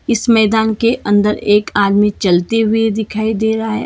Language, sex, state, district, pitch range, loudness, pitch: Hindi, female, Karnataka, Bangalore, 210-225 Hz, -14 LUFS, 220 Hz